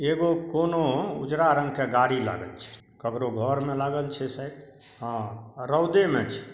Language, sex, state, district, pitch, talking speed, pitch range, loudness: Maithili, male, Bihar, Saharsa, 135 Hz, 165 wpm, 120-145 Hz, -26 LUFS